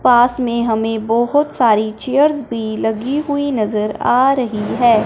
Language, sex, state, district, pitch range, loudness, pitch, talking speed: Hindi, male, Punjab, Fazilka, 220-265 Hz, -16 LUFS, 235 Hz, 155 wpm